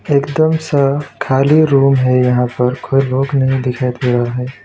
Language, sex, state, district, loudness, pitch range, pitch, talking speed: Hindi, male, West Bengal, Alipurduar, -14 LUFS, 125-140 Hz, 135 Hz, 180 wpm